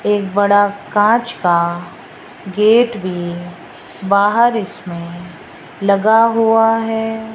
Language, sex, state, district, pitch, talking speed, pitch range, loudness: Hindi, female, Rajasthan, Jaipur, 205 Hz, 90 wpm, 180-225 Hz, -15 LUFS